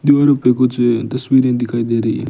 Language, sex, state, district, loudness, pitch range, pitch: Hindi, male, Rajasthan, Bikaner, -15 LUFS, 120-130 Hz, 125 Hz